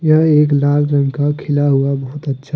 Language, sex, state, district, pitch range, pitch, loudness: Hindi, male, Jharkhand, Deoghar, 140-145 Hz, 145 Hz, -15 LUFS